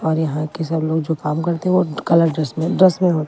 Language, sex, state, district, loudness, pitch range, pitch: Hindi, female, Delhi, New Delhi, -18 LUFS, 155-170 Hz, 160 Hz